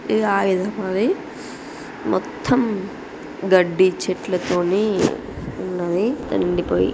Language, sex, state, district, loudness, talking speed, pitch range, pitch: Telugu, female, Andhra Pradesh, Srikakulam, -21 LUFS, 80 wpm, 185-210 Hz, 190 Hz